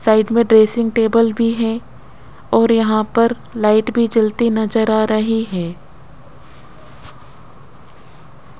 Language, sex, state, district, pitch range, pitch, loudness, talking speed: Hindi, female, Rajasthan, Jaipur, 170-230 Hz, 220 Hz, -16 LUFS, 110 wpm